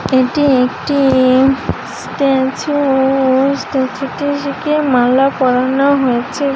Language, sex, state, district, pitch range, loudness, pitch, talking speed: Bengali, female, West Bengal, Paschim Medinipur, 260-280 Hz, -14 LUFS, 270 Hz, 90 wpm